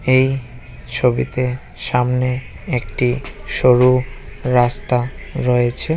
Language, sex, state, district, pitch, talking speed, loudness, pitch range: Bengali, male, West Bengal, Jalpaiguri, 125 Hz, 80 wpm, -18 LUFS, 125-130 Hz